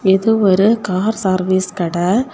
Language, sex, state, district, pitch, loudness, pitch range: Tamil, female, Tamil Nadu, Kanyakumari, 190 Hz, -15 LUFS, 185-220 Hz